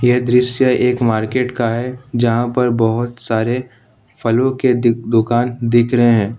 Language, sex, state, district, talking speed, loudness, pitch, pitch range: Hindi, male, Jharkhand, Ranchi, 160 wpm, -16 LUFS, 120 Hz, 115-125 Hz